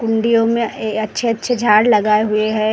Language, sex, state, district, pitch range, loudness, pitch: Hindi, female, Maharashtra, Gondia, 215-230 Hz, -16 LUFS, 220 Hz